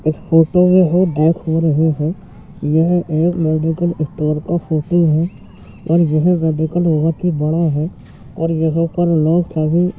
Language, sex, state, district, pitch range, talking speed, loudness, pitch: Hindi, male, Uttar Pradesh, Jyotiba Phule Nagar, 155-175 Hz, 120 wpm, -16 LUFS, 160 Hz